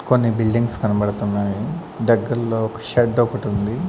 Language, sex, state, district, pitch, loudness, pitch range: Telugu, male, Andhra Pradesh, Sri Satya Sai, 115 Hz, -20 LUFS, 105-120 Hz